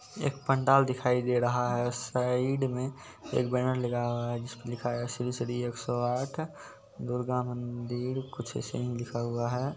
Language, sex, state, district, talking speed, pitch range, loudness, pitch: Maithili, male, Bihar, Supaul, 180 wpm, 120-130 Hz, -31 LUFS, 125 Hz